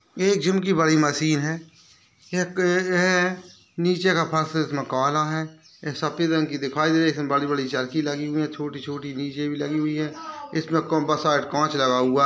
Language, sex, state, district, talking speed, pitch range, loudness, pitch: Hindi, male, Uttar Pradesh, Etah, 185 wpm, 145-165 Hz, -23 LUFS, 155 Hz